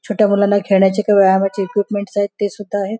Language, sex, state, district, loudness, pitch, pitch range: Marathi, female, Maharashtra, Nagpur, -16 LUFS, 205 Hz, 195-205 Hz